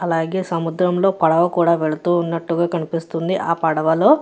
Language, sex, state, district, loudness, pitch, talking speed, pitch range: Telugu, female, Andhra Pradesh, Guntur, -19 LUFS, 170 Hz, 140 wpm, 165-175 Hz